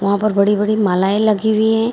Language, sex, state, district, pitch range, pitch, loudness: Hindi, female, Bihar, Kishanganj, 200-220 Hz, 210 Hz, -15 LUFS